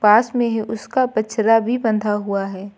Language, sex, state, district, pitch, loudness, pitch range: Hindi, female, Uttar Pradesh, Lucknow, 220 Hz, -19 LUFS, 210-230 Hz